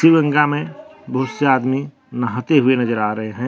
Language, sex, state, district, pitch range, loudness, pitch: Hindi, male, Jharkhand, Deoghar, 125-150 Hz, -18 LUFS, 130 Hz